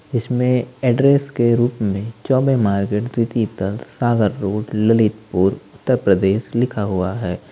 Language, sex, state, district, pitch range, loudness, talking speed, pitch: Hindi, male, Uttar Pradesh, Lalitpur, 100-125 Hz, -18 LUFS, 135 wpm, 115 Hz